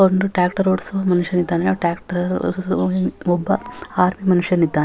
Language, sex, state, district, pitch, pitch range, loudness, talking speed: Kannada, female, Karnataka, Dharwad, 180 Hz, 175-190 Hz, -19 LUFS, 110 wpm